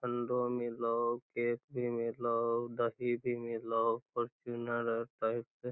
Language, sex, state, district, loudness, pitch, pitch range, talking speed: Magahi, male, Bihar, Lakhisarai, -36 LUFS, 120 Hz, 115-120 Hz, 125 wpm